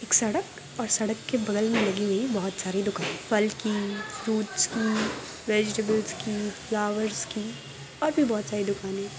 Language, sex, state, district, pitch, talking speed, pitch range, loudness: Hindi, female, Uttar Pradesh, Varanasi, 215 Hz, 165 wpm, 205-220 Hz, -27 LUFS